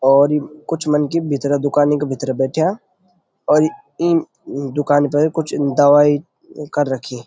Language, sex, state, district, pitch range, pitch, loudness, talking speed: Garhwali, male, Uttarakhand, Uttarkashi, 140-160 Hz, 145 Hz, -17 LUFS, 140 wpm